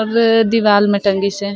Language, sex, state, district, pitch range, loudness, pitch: Chhattisgarhi, female, Chhattisgarh, Sarguja, 200-225 Hz, -14 LUFS, 205 Hz